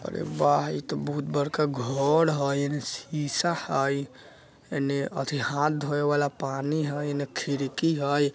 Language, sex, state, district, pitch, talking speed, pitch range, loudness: Bajjika, male, Bihar, Vaishali, 145 Hz, 150 wpm, 140-145 Hz, -27 LUFS